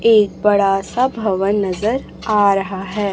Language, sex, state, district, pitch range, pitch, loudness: Hindi, female, Chhattisgarh, Raipur, 195-215 Hz, 205 Hz, -17 LUFS